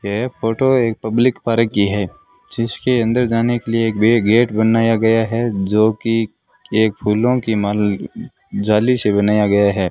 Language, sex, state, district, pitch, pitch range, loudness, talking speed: Hindi, male, Rajasthan, Bikaner, 115 Hz, 105-115 Hz, -16 LUFS, 175 wpm